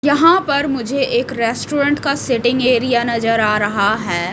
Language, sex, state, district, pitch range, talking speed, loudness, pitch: Hindi, female, Odisha, Malkangiri, 230-280 Hz, 165 wpm, -16 LUFS, 245 Hz